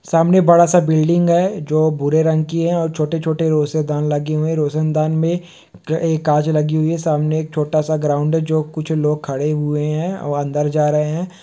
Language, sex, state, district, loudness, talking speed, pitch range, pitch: Hindi, male, Bihar, Supaul, -17 LUFS, 200 wpm, 150-165 Hz, 155 Hz